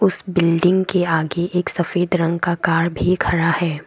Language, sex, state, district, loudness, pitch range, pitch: Hindi, female, Assam, Kamrup Metropolitan, -18 LUFS, 165-180 Hz, 175 Hz